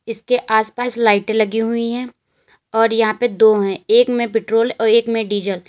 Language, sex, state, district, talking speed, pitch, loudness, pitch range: Hindi, female, Uttar Pradesh, Lalitpur, 200 wpm, 225 Hz, -17 LUFS, 220-235 Hz